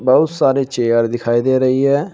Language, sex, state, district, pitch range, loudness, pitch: Hindi, male, Uttar Pradesh, Shamli, 120-140 Hz, -15 LUFS, 130 Hz